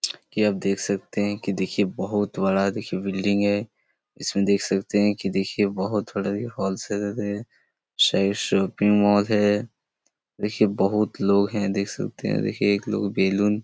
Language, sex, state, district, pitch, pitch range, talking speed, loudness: Hindi, male, Chhattisgarh, Korba, 100 Hz, 100-105 Hz, 170 wpm, -23 LUFS